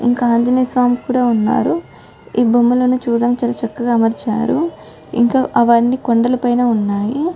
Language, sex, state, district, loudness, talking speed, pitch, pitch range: Telugu, female, Telangana, Karimnagar, -15 LUFS, 120 wpm, 240 Hz, 235-250 Hz